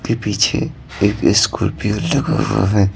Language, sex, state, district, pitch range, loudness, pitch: Hindi, male, Bihar, Patna, 100-125 Hz, -17 LUFS, 105 Hz